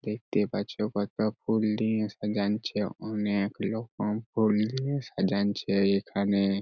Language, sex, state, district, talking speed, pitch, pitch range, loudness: Bengali, male, West Bengal, Purulia, 120 wpm, 105 Hz, 100-110 Hz, -29 LUFS